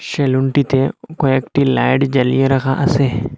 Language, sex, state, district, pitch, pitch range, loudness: Bengali, male, Assam, Hailakandi, 135 Hz, 130-140 Hz, -15 LUFS